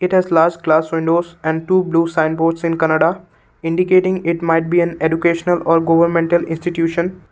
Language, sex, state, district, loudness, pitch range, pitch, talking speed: English, male, Assam, Kamrup Metropolitan, -16 LUFS, 165-175 Hz, 165 Hz, 140 wpm